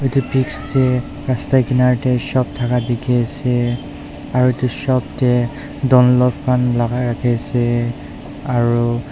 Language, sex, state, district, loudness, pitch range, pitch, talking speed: Nagamese, male, Nagaland, Dimapur, -17 LUFS, 120-130 Hz, 125 Hz, 140 wpm